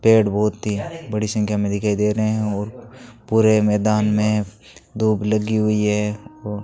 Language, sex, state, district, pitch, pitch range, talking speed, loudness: Hindi, male, Rajasthan, Bikaner, 105 Hz, 105-110 Hz, 180 wpm, -20 LUFS